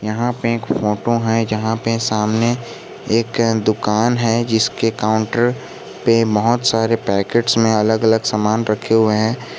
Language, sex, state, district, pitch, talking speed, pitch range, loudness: Hindi, male, Jharkhand, Garhwa, 115 Hz, 150 wpm, 110-115 Hz, -17 LUFS